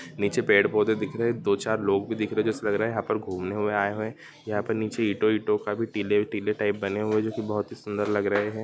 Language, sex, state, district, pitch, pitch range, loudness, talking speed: Hindi, male, Bihar, Gopalganj, 105 Hz, 105-110 Hz, -26 LUFS, 285 wpm